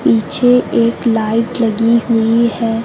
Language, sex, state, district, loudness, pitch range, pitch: Hindi, female, Uttar Pradesh, Lucknow, -13 LUFS, 225-235 Hz, 230 Hz